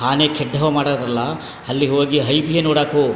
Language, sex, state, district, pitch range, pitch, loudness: Kannada, male, Karnataka, Chamarajanagar, 140-150 Hz, 145 Hz, -18 LUFS